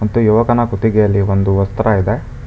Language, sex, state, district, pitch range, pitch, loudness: Kannada, male, Karnataka, Bangalore, 100-115 Hz, 110 Hz, -14 LUFS